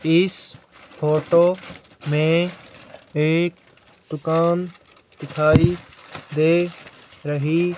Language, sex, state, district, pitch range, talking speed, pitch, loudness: Hindi, female, Haryana, Charkhi Dadri, 150-175 Hz, 60 wpm, 165 Hz, -20 LUFS